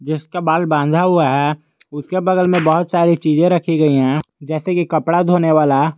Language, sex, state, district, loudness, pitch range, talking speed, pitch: Hindi, male, Jharkhand, Garhwa, -15 LUFS, 150-175 Hz, 190 wpm, 160 Hz